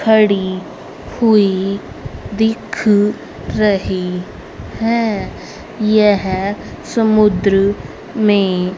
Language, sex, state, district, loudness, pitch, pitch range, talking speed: Hindi, female, Haryana, Rohtak, -15 LUFS, 205 Hz, 195-215 Hz, 55 wpm